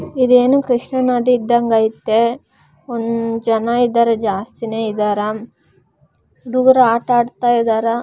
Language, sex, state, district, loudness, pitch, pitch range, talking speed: Kannada, female, Karnataka, Raichur, -16 LUFS, 235 Hz, 225-245 Hz, 75 wpm